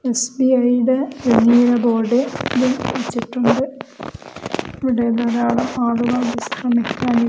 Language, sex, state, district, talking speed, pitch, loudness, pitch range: Malayalam, female, Kerala, Kozhikode, 90 wpm, 245 Hz, -18 LUFS, 235-255 Hz